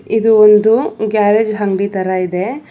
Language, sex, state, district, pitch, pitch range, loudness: Kannada, female, Karnataka, Bangalore, 210 Hz, 195-220 Hz, -13 LUFS